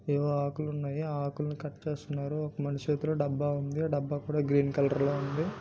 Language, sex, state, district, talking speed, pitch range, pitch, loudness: Telugu, male, Andhra Pradesh, Guntur, 195 wpm, 140-150 Hz, 145 Hz, -32 LUFS